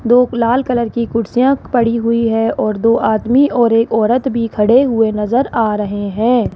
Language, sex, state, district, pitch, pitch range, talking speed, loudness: Hindi, female, Rajasthan, Jaipur, 230 Hz, 225-245 Hz, 190 wpm, -14 LUFS